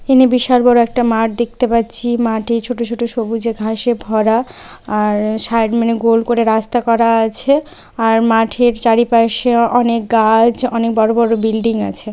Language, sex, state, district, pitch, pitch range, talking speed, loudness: Bengali, female, West Bengal, Malda, 230 Hz, 225-240 Hz, 150 wpm, -14 LUFS